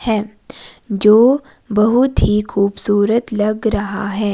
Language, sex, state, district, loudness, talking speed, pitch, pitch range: Hindi, female, Himachal Pradesh, Shimla, -15 LUFS, 110 wpm, 210 Hz, 205-230 Hz